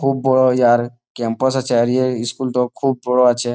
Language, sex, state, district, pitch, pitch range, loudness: Bengali, male, West Bengal, Malda, 125 Hz, 120-130 Hz, -17 LUFS